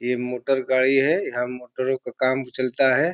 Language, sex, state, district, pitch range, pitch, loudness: Hindi, male, Uttar Pradesh, Ghazipur, 125-135 Hz, 130 Hz, -23 LUFS